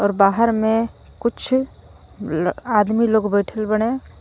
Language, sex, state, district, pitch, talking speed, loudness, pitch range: Bhojpuri, female, Jharkhand, Palamu, 225 Hz, 115 wpm, -19 LUFS, 210-235 Hz